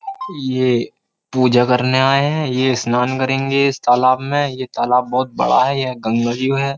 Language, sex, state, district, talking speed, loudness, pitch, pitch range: Hindi, male, Uttar Pradesh, Jyotiba Phule Nagar, 175 wpm, -17 LUFS, 130 Hz, 125-135 Hz